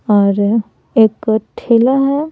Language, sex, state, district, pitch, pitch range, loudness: Hindi, female, Bihar, Patna, 225 Hz, 210-255 Hz, -14 LUFS